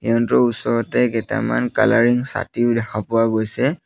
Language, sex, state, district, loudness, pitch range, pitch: Assamese, male, Assam, Sonitpur, -18 LUFS, 110-120 Hz, 115 Hz